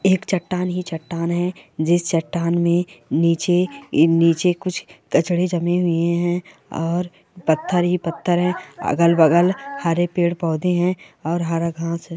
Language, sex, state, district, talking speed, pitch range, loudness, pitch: Hindi, female, Andhra Pradesh, Chittoor, 150 wpm, 170-180 Hz, -20 LUFS, 175 Hz